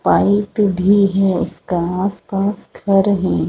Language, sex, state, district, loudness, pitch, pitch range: Hindi, female, Chhattisgarh, Rajnandgaon, -16 LUFS, 195 Hz, 185-200 Hz